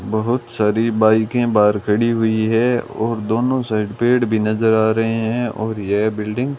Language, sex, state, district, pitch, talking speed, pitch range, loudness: Hindi, male, Rajasthan, Bikaner, 110 Hz, 180 wpm, 110-120 Hz, -18 LUFS